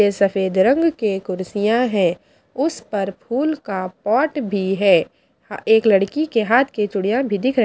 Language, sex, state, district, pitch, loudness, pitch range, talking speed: Hindi, female, Bihar, Kaimur, 210 Hz, -19 LUFS, 195-260 Hz, 190 wpm